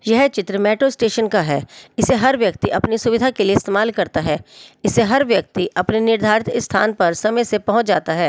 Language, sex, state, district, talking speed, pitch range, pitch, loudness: Hindi, female, Delhi, New Delhi, 205 wpm, 205-230 Hz, 220 Hz, -17 LUFS